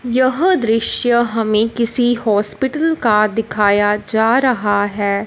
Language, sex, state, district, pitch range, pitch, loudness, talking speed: Hindi, female, Punjab, Fazilka, 210-245 Hz, 225 Hz, -15 LUFS, 115 wpm